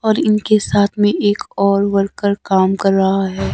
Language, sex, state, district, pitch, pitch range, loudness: Hindi, male, Himachal Pradesh, Shimla, 200 Hz, 195-205 Hz, -15 LUFS